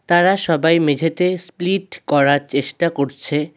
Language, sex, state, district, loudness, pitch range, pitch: Bengali, male, West Bengal, Alipurduar, -18 LUFS, 145-175 Hz, 165 Hz